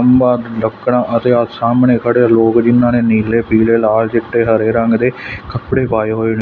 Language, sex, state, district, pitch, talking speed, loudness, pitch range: Punjabi, male, Punjab, Fazilka, 115 Hz, 185 wpm, -13 LUFS, 110-120 Hz